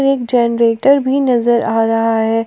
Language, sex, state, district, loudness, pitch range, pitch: Hindi, female, Jharkhand, Palamu, -14 LUFS, 225-265 Hz, 235 Hz